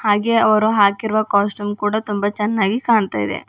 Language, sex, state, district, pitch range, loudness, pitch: Kannada, female, Karnataka, Bidar, 205-220 Hz, -17 LUFS, 210 Hz